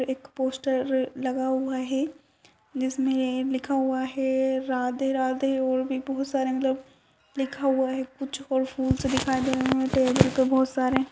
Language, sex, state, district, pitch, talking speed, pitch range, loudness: Hindi, female, Rajasthan, Churu, 265 Hz, 175 wpm, 260-270 Hz, -26 LUFS